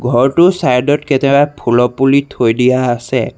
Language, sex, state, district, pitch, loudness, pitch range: Assamese, male, Assam, Sonitpur, 135 Hz, -12 LUFS, 125-145 Hz